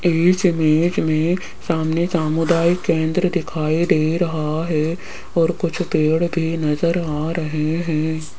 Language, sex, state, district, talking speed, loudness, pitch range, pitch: Hindi, female, Rajasthan, Jaipur, 130 wpm, -19 LUFS, 155-170 Hz, 165 Hz